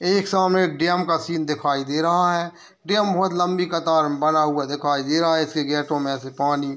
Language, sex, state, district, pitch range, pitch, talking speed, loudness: Hindi, male, Bihar, Muzaffarpur, 145-175 Hz, 160 Hz, 240 wpm, -21 LUFS